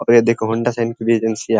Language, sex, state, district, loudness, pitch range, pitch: Hindi, male, Uttar Pradesh, Ghazipur, -17 LUFS, 110-115 Hz, 115 Hz